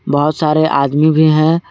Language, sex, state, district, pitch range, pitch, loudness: Hindi, male, Jharkhand, Garhwa, 150-155 Hz, 155 Hz, -12 LUFS